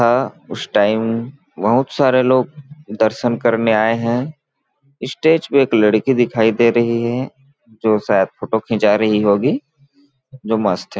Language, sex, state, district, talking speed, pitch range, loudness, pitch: Hindi, male, Chhattisgarh, Balrampur, 145 wpm, 110-135 Hz, -16 LUFS, 120 Hz